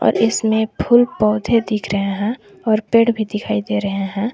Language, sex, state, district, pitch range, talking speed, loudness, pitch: Hindi, female, Jharkhand, Garhwa, 200-230 Hz, 180 wpm, -18 LUFS, 215 Hz